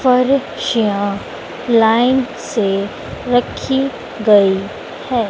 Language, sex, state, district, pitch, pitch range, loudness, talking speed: Hindi, female, Madhya Pradesh, Dhar, 235 Hz, 205-255 Hz, -16 LUFS, 70 wpm